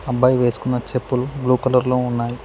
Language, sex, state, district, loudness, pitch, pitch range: Telugu, male, Telangana, Mahabubabad, -19 LUFS, 125 Hz, 125-130 Hz